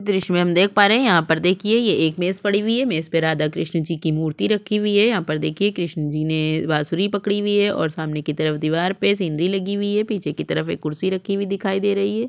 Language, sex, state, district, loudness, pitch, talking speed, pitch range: Hindi, female, Chhattisgarh, Sukma, -20 LUFS, 185 Hz, 275 wpm, 160-205 Hz